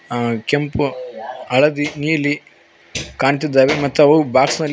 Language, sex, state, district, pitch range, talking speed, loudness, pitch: Kannada, male, Karnataka, Koppal, 125-150 Hz, 115 wpm, -16 LUFS, 140 Hz